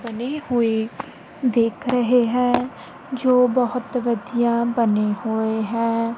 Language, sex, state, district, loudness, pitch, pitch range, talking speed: Punjabi, female, Punjab, Kapurthala, -21 LUFS, 235 Hz, 230-250 Hz, 105 wpm